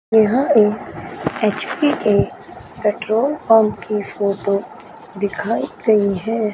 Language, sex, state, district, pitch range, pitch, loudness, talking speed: Hindi, female, Chandigarh, Chandigarh, 205-225 Hz, 215 Hz, -18 LUFS, 100 wpm